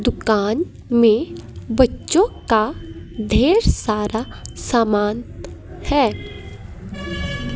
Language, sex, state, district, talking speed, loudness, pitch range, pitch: Hindi, female, Himachal Pradesh, Shimla, 65 wpm, -19 LUFS, 210-240 Hz, 220 Hz